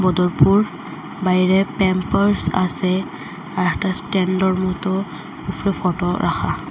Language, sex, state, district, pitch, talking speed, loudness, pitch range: Bengali, female, Assam, Hailakandi, 185 Hz, 100 wpm, -19 LUFS, 180-190 Hz